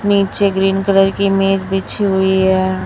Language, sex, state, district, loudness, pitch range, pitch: Hindi, male, Chhattisgarh, Raipur, -14 LUFS, 190-195 Hz, 195 Hz